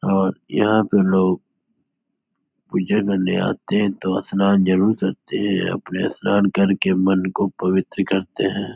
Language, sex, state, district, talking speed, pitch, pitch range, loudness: Hindi, male, Uttar Pradesh, Etah, 150 wpm, 95 Hz, 95-100 Hz, -20 LUFS